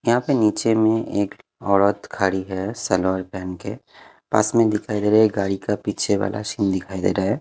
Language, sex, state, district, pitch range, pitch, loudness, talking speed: Hindi, male, Haryana, Jhajjar, 95-110 Hz, 100 Hz, -21 LUFS, 210 wpm